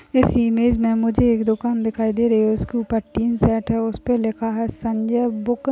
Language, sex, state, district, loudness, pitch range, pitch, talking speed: Hindi, female, Uttar Pradesh, Budaun, -20 LUFS, 225-235 Hz, 230 Hz, 230 wpm